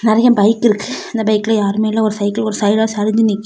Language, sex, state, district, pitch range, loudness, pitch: Tamil, female, Tamil Nadu, Kanyakumari, 210-225 Hz, -15 LUFS, 215 Hz